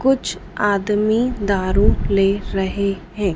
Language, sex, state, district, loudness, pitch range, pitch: Hindi, female, Madhya Pradesh, Dhar, -19 LUFS, 190-210 Hz, 200 Hz